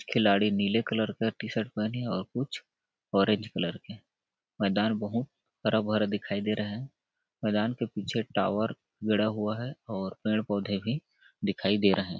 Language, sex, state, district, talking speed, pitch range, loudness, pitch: Hindi, male, Chhattisgarh, Balrampur, 165 wpm, 105-115 Hz, -30 LUFS, 105 Hz